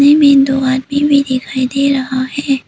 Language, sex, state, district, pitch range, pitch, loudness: Hindi, female, Arunachal Pradesh, Papum Pare, 260-280 Hz, 275 Hz, -13 LUFS